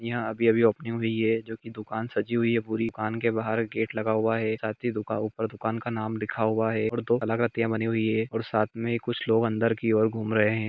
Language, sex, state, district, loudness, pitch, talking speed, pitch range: Hindi, male, Jharkhand, Jamtara, -27 LUFS, 110 Hz, 260 wpm, 110-115 Hz